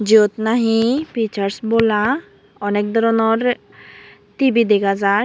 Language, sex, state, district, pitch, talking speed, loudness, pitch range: Chakma, female, Tripura, Unakoti, 225 Hz, 105 wpm, -17 LUFS, 205-230 Hz